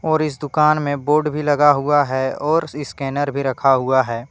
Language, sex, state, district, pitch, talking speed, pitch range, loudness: Hindi, male, Jharkhand, Deoghar, 145 Hz, 210 wpm, 135-150 Hz, -18 LUFS